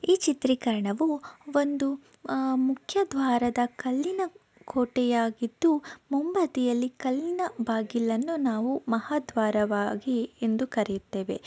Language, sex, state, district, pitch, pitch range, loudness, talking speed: Kannada, female, Karnataka, Dakshina Kannada, 255 Hz, 230-295 Hz, -28 LUFS, 85 wpm